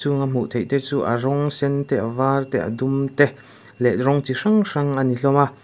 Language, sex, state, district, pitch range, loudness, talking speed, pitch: Mizo, male, Mizoram, Aizawl, 130-140 Hz, -21 LUFS, 255 wpm, 135 Hz